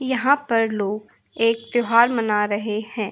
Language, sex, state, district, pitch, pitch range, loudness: Hindi, female, Uttar Pradesh, Hamirpur, 230 Hz, 210-240 Hz, -21 LUFS